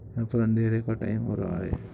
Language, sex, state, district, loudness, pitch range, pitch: Hindi, male, Bihar, Samastipur, -28 LUFS, 105-115 Hz, 110 Hz